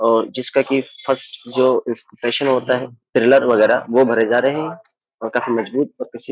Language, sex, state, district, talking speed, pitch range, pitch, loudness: Hindi, male, Uttar Pradesh, Jyotiba Phule Nagar, 190 wpm, 120-130 Hz, 125 Hz, -18 LUFS